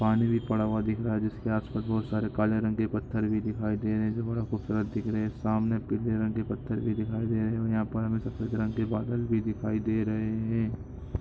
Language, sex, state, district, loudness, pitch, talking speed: Hindi, male, Jharkhand, Sahebganj, -30 LUFS, 110 Hz, 255 wpm